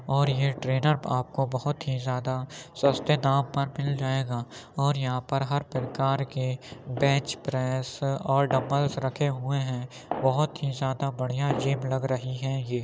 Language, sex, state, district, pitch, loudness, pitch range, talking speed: Hindi, male, Uttar Pradesh, Muzaffarnagar, 135 Hz, -28 LUFS, 130-140 Hz, 160 wpm